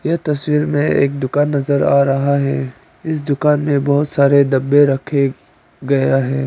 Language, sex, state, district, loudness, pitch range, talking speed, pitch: Hindi, female, Arunachal Pradesh, Papum Pare, -15 LUFS, 135-145 Hz, 165 wpm, 140 Hz